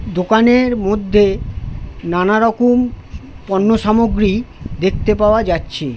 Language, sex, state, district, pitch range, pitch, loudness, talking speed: Bengali, male, West Bengal, Jhargram, 185-225 Hz, 210 Hz, -15 LUFS, 90 wpm